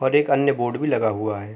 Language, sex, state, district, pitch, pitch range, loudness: Hindi, male, Uttar Pradesh, Jalaun, 120 Hz, 110-140 Hz, -21 LUFS